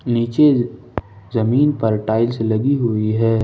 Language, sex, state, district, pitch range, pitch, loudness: Hindi, male, Jharkhand, Ranchi, 110-120 Hz, 115 Hz, -17 LUFS